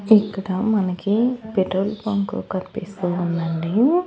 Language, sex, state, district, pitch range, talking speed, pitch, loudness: Telugu, female, Andhra Pradesh, Annamaya, 185-220 Hz, 90 wpm, 200 Hz, -22 LUFS